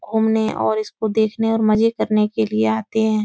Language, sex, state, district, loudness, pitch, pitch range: Hindi, female, Uttar Pradesh, Etah, -19 LUFS, 215 Hz, 175-220 Hz